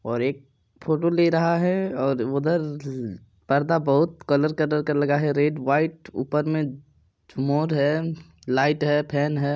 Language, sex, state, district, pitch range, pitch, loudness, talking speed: Maithili, male, Bihar, Supaul, 135-155 Hz, 145 Hz, -23 LUFS, 155 wpm